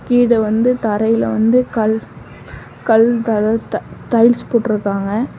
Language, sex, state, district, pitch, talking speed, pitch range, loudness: Tamil, female, Tamil Nadu, Namakkal, 225 Hz, 100 wpm, 210-235 Hz, -15 LUFS